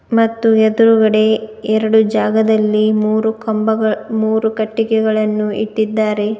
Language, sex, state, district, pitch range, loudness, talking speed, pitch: Kannada, female, Karnataka, Bidar, 215-220 Hz, -15 LUFS, 85 wpm, 220 Hz